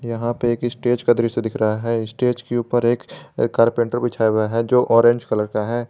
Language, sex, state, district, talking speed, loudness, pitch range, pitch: Hindi, male, Jharkhand, Garhwa, 225 wpm, -19 LUFS, 115-120 Hz, 120 Hz